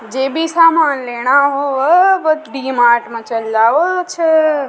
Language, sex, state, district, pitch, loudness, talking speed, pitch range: Rajasthani, female, Rajasthan, Nagaur, 280 Hz, -13 LUFS, 165 wpm, 245-325 Hz